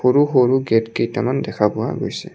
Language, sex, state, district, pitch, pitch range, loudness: Assamese, male, Assam, Kamrup Metropolitan, 125 Hz, 115-130 Hz, -18 LUFS